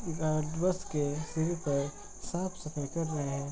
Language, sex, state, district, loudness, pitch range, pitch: Hindi, male, Bihar, Madhepura, -33 LUFS, 145-170 Hz, 155 Hz